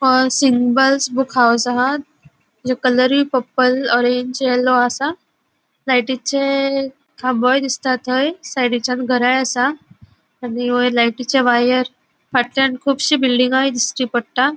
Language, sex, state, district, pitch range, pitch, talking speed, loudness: Konkani, female, Goa, North and South Goa, 245-270 Hz, 255 Hz, 105 wpm, -16 LUFS